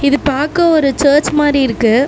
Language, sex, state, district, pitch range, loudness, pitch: Tamil, female, Tamil Nadu, Namakkal, 275-300 Hz, -12 LUFS, 285 Hz